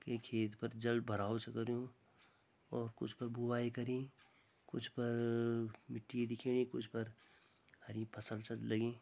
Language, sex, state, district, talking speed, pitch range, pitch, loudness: Garhwali, male, Uttarakhand, Tehri Garhwal, 145 wpm, 110-120 Hz, 115 Hz, -42 LUFS